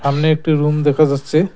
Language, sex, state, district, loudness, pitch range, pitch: Bengali, male, West Bengal, Cooch Behar, -15 LUFS, 145-155 Hz, 150 Hz